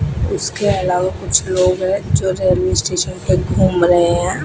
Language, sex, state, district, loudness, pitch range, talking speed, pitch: Hindi, female, Rajasthan, Bikaner, -16 LUFS, 175-185 Hz, 160 wpm, 185 Hz